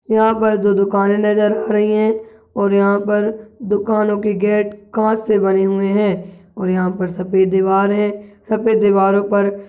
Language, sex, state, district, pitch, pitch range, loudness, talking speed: Hindi, male, Rajasthan, Nagaur, 205 Hz, 195-215 Hz, -16 LUFS, 175 wpm